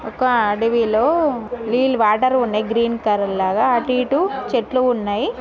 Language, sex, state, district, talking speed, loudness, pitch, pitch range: Telugu, female, Telangana, Nalgonda, 145 wpm, -18 LUFS, 235 Hz, 215-255 Hz